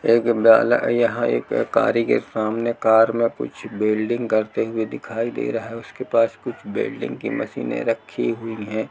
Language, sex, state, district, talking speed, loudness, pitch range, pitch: Hindi, male, Uttar Pradesh, Jalaun, 175 wpm, -21 LUFS, 110-115 Hz, 115 Hz